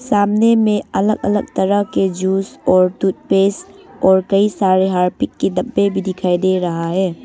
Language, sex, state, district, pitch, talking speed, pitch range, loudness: Hindi, female, Arunachal Pradesh, Longding, 195 Hz, 165 wpm, 185-205 Hz, -16 LUFS